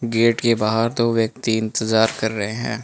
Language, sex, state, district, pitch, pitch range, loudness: Hindi, male, Manipur, Imphal West, 115 Hz, 110-115 Hz, -20 LUFS